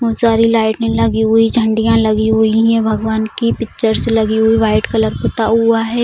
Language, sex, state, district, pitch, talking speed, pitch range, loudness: Hindi, female, Bihar, Jamui, 225 Hz, 200 wpm, 220-230 Hz, -13 LUFS